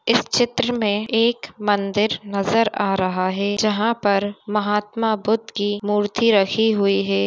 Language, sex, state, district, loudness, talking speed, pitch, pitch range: Hindi, female, Uttar Pradesh, Gorakhpur, -20 LUFS, 150 wpm, 210 Hz, 200-225 Hz